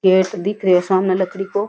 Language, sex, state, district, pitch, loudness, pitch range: Rajasthani, female, Rajasthan, Churu, 190 Hz, -18 LUFS, 185-195 Hz